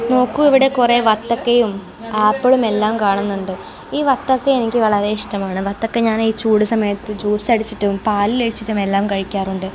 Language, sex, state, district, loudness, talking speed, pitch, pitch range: Malayalam, female, Kerala, Kozhikode, -17 LUFS, 140 wpm, 220 Hz, 205-235 Hz